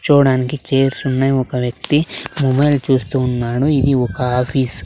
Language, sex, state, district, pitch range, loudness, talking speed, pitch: Telugu, male, Andhra Pradesh, Sri Satya Sai, 125-140 Hz, -16 LUFS, 135 wpm, 130 Hz